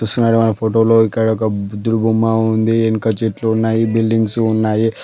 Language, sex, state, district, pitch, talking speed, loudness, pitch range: Telugu, male, Andhra Pradesh, Guntur, 110 Hz, 165 wpm, -15 LUFS, 110-115 Hz